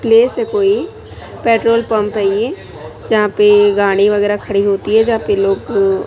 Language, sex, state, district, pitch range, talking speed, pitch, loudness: Hindi, female, Chhattisgarh, Raipur, 205-230 Hz, 170 wpm, 215 Hz, -14 LUFS